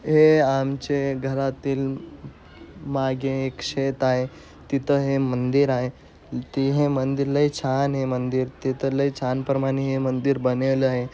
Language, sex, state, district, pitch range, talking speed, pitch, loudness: Marathi, male, Maharashtra, Aurangabad, 130-140 Hz, 135 wpm, 135 Hz, -23 LUFS